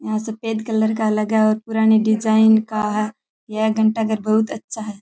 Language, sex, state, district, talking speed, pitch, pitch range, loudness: Rajasthani, male, Rajasthan, Churu, 190 wpm, 220 Hz, 215-220 Hz, -19 LUFS